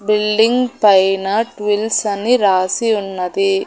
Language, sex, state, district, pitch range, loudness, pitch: Telugu, female, Andhra Pradesh, Annamaya, 195-235 Hz, -15 LUFS, 210 Hz